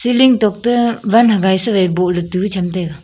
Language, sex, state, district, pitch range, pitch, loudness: Wancho, female, Arunachal Pradesh, Longding, 180-235 Hz, 200 Hz, -14 LUFS